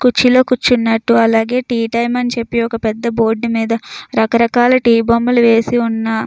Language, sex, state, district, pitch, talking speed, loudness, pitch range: Telugu, female, Andhra Pradesh, Chittoor, 235 Hz, 155 wpm, -14 LUFS, 225-245 Hz